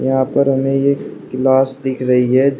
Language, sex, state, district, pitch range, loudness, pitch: Hindi, male, Uttar Pradesh, Shamli, 130-135 Hz, -15 LUFS, 130 Hz